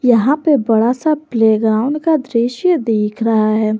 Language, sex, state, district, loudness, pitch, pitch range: Hindi, female, Jharkhand, Garhwa, -15 LUFS, 235 Hz, 220-290 Hz